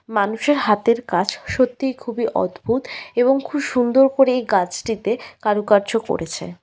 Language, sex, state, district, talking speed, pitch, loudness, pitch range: Bengali, female, West Bengal, Malda, 125 wpm, 230 Hz, -20 LUFS, 205-255 Hz